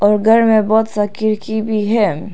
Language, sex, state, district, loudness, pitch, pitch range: Hindi, female, Arunachal Pradesh, Lower Dibang Valley, -15 LUFS, 215 Hz, 210-220 Hz